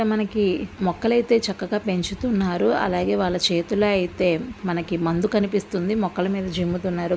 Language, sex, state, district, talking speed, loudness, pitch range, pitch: Telugu, female, Andhra Pradesh, Visakhapatnam, 125 wpm, -23 LUFS, 180-210 Hz, 190 Hz